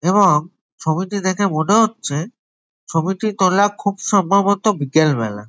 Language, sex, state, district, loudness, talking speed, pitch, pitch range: Bengali, male, West Bengal, Jalpaiguri, -17 LUFS, 120 wpm, 195 Hz, 160-205 Hz